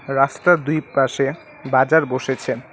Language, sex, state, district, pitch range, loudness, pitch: Bengali, male, West Bengal, Alipurduar, 135-155 Hz, -19 LUFS, 135 Hz